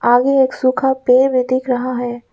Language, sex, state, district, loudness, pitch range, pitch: Hindi, female, Arunachal Pradesh, Lower Dibang Valley, -15 LUFS, 250-265 Hz, 255 Hz